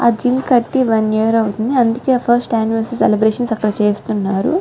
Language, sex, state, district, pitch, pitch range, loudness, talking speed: Telugu, female, Telangana, Nalgonda, 230 Hz, 215-245 Hz, -15 LUFS, 155 wpm